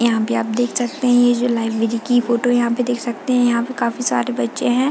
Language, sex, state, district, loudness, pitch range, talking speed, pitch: Hindi, female, Chhattisgarh, Bilaspur, -18 LUFS, 230-245 Hz, 270 wpm, 240 Hz